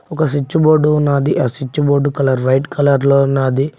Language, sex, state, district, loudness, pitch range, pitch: Telugu, male, Telangana, Mahabubabad, -14 LUFS, 135-150 Hz, 140 Hz